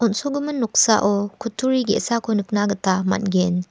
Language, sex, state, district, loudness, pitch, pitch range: Garo, female, Meghalaya, West Garo Hills, -20 LUFS, 210 Hz, 200-235 Hz